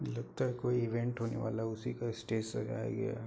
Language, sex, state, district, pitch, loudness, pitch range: Hindi, male, Uttar Pradesh, Hamirpur, 115 Hz, -37 LUFS, 110-125 Hz